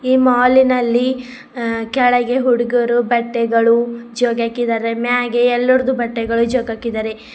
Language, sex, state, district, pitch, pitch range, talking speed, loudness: Kannada, female, Karnataka, Bidar, 240 Hz, 230-250 Hz, 105 wpm, -16 LUFS